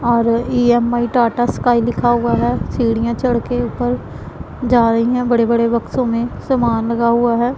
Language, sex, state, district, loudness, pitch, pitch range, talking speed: Hindi, female, Punjab, Pathankot, -16 LUFS, 235 Hz, 230-240 Hz, 175 wpm